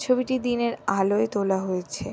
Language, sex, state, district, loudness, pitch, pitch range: Bengali, female, West Bengal, Jhargram, -25 LUFS, 210 Hz, 195-245 Hz